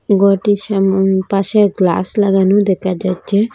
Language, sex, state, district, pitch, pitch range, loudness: Bengali, female, Assam, Hailakandi, 195 Hz, 190-205 Hz, -14 LUFS